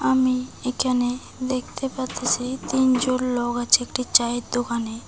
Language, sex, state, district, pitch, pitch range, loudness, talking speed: Bengali, female, West Bengal, Cooch Behar, 250 Hz, 245-255 Hz, -23 LUFS, 120 wpm